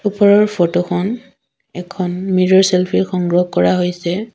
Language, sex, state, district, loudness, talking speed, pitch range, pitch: Assamese, female, Assam, Sonitpur, -15 LUFS, 125 wpm, 175-200 Hz, 185 Hz